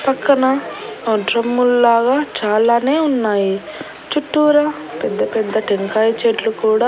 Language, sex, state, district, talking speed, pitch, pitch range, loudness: Telugu, female, Andhra Pradesh, Annamaya, 85 wpm, 235 Hz, 220-270 Hz, -16 LUFS